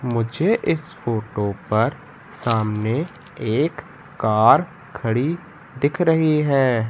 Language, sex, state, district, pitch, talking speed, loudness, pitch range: Hindi, male, Madhya Pradesh, Katni, 135 Hz, 95 wpm, -21 LUFS, 115-160 Hz